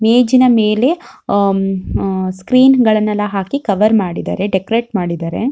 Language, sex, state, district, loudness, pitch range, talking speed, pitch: Kannada, female, Karnataka, Shimoga, -14 LUFS, 195-245 Hz, 120 wpm, 210 Hz